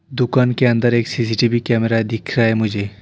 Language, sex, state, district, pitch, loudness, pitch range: Hindi, male, West Bengal, Alipurduar, 115 Hz, -17 LUFS, 115-120 Hz